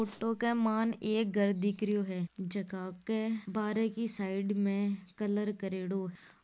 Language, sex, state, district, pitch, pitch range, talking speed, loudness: Marwari, female, Rajasthan, Nagaur, 205 Hz, 195-220 Hz, 170 wpm, -34 LUFS